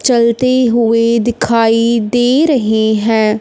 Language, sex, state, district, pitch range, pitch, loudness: Hindi, male, Punjab, Fazilka, 225-245 Hz, 230 Hz, -12 LUFS